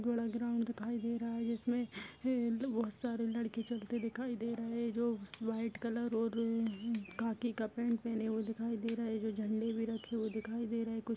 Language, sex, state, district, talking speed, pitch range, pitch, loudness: Hindi, female, Chhattisgarh, Bastar, 210 wpm, 225-235 Hz, 230 Hz, -38 LUFS